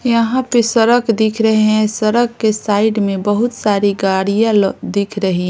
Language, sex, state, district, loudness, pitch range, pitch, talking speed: Hindi, female, Bihar, Patna, -15 LUFS, 205-230 Hz, 215 Hz, 185 wpm